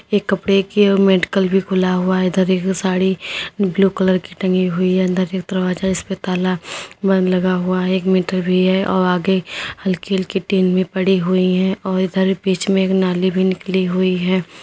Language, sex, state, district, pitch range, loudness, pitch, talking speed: Hindi, female, Uttar Pradesh, Lalitpur, 185-190 Hz, -17 LUFS, 185 Hz, 200 wpm